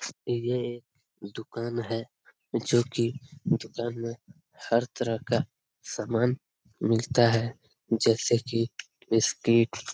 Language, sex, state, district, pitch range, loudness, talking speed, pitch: Hindi, male, Jharkhand, Jamtara, 115-125 Hz, -28 LUFS, 110 wpm, 120 Hz